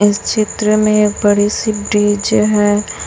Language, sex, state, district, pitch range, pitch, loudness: Hindi, female, Chhattisgarh, Raipur, 205-215 Hz, 210 Hz, -14 LUFS